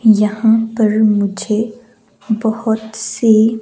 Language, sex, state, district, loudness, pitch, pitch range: Hindi, female, Himachal Pradesh, Shimla, -15 LUFS, 220 Hz, 215-225 Hz